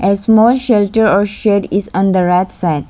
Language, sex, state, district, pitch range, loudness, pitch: English, female, Arunachal Pradesh, Lower Dibang Valley, 185-220 Hz, -13 LUFS, 200 Hz